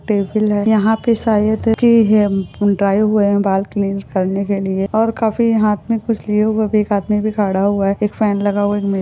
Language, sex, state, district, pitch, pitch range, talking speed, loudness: Hindi, female, Jharkhand, Jamtara, 210 Hz, 200-220 Hz, 205 wpm, -16 LUFS